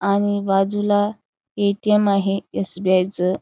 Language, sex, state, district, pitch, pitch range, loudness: Marathi, female, Karnataka, Belgaum, 200 Hz, 195-205 Hz, -20 LUFS